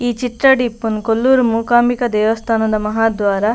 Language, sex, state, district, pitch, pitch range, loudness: Tulu, female, Karnataka, Dakshina Kannada, 225 Hz, 220-245 Hz, -15 LUFS